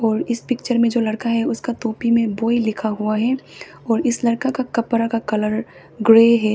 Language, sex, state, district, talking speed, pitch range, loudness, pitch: Hindi, female, Arunachal Pradesh, Papum Pare, 210 wpm, 220-235 Hz, -19 LUFS, 230 Hz